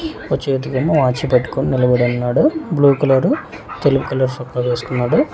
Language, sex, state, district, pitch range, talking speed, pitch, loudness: Telugu, male, Telangana, Hyderabad, 125-145 Hz, 135 wpm, 135 Hz, -17 LUFS